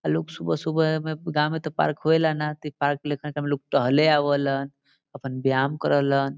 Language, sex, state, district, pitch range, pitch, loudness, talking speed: Bhojpuri, male, Bihar, Saran, 140-155 Hz, 145 Hz, -24 LUFS, 190 wpm